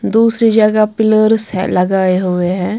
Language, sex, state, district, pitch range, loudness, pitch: Hindi, female, Punjab, Kapurthala, 185-220 Hz, -12 LUFS, 215 Hz